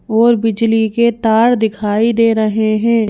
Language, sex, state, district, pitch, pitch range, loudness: Hindi, female, Madhya Pradesh, Bhopal, 225 Hz, 220-230 Hz, -13 LUFS